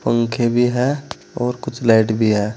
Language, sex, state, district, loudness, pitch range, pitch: Hindi, male, Uttar Pradesh, Saharanpur, -18 LUFS, 110-125 Hz, 120 Hz